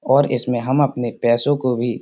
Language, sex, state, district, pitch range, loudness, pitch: Hindi, male, Uttar Pradesh, Muzaffarnagar, 120-135 Hz, -19 LUFS, 125 Hz